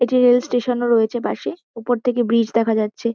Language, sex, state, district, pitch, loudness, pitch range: Bengali, female, West Bengal, Kolkata, 240 Hz, -19 LUFS, 230-245 Hz